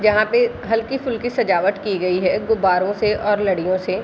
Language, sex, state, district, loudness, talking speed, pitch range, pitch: Hindi, female, Bihar, Kishanganj, -19 LUFS, 210 wpm, 190-225 Hz, 210 Hz